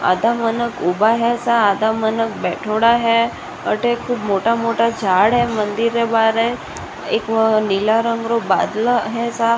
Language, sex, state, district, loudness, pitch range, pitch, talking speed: Rajasthani, female, Rajasthan, Nagaur, -17 LUFS, 220-235 Hz, 230 Hz, 150 wpm